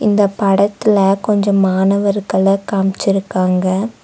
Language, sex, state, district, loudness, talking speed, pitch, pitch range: Tamil, female, Tamil Nadu, Nilgiris, -15 LUFS, 75 wpm, 195 Hz, 195-205 Hz